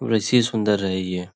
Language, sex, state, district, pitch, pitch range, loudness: Hindi, male, Maharashtra, Nagpur, 105 Hz, 95-115 Hz, -21 LUFS